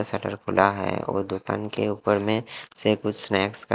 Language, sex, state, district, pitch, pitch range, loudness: Hindi, male, Haryana, Rohtak, 100 Hz, 95-105 Hz, -25 LUFS